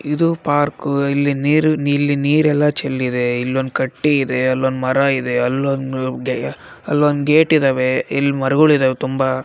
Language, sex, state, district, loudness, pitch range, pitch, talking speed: Kannada, male, Karnataka, Raichur, -17 LUFS, 130-145 Hz, 140 Hz, 140 wpm